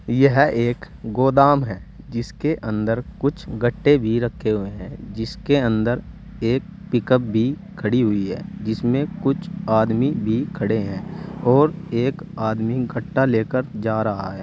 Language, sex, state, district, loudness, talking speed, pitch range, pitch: Hindi, male, Uttar Pradesh, Saharanpur, -21 LUFS, 135 wpm, 110-140 Hz, 120 Hz